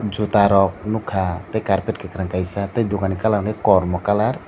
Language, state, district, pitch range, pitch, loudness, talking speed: Kokborok, Tripura, Dhalai, 95-110 Hz, 100 Hz, -20 LUFS, 190 wpm